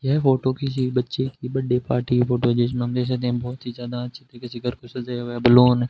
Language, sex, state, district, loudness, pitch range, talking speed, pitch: Hindi, male, Rajasthan, Bikaner, -22 LUFS, 120-130 Hz, 245 wpm, 125 Hz